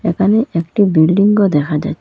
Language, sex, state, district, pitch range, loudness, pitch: Bengali, female, Assam, Hailakandi, 165-205 Hz, -13 LUFS, 185 Hz